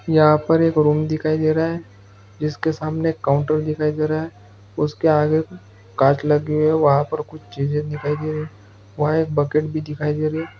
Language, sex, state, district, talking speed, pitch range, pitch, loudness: Hindi, male, Bihar, Araria, 210 wpm, 140-155 Hz, 150 Hz, -20 LUFS